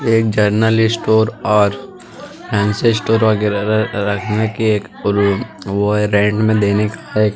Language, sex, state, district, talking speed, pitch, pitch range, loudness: Hindi, male, Chhattisgarh, Sukma, 120 wpm, 105 Hz, 105-110 Hz, -16 LUFS